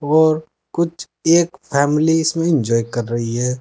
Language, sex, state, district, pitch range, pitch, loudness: Hindi, male, Uttar Pradesh, Saharanpur, 125-165 Hz, 155 Hz, -18 LUFS